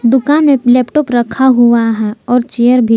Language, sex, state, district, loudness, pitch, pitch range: Hindi, female, Jharkhand, Palamu, -11 LUFS, 245 Hz, 235-260 Hz